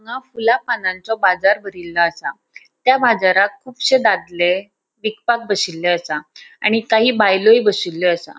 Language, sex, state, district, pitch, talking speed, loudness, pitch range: Konkani, female, Goa, North and South Goa, 205 Hz, 130 wpm, -17 LUFS, 180-230 Hz